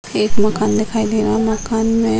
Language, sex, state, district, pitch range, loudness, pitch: Hindi, female, Bihar, Muzaffarpur, 210-220 Hz, -17 LUFS, 215 Hz